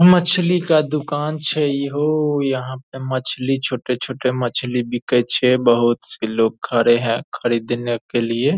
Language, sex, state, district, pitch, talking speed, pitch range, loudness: Angika, male, Bihar, Purnia, 130 Hz, 140 wpm, 120-145 Hz, -19 LUFS